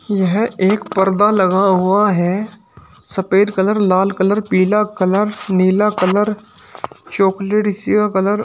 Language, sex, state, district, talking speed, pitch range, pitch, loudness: Hindi, male, Uttar Pradesh, Shamli, 135 wpm, 190-210 Hz, 200 Hz, -15 LUFS